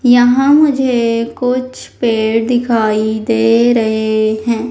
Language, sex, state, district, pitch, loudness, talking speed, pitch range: Hindi, female, Madhya Pradesh, Umaria, 230 Hz, -13 LUFS, 100 wpm, 220-245 Hz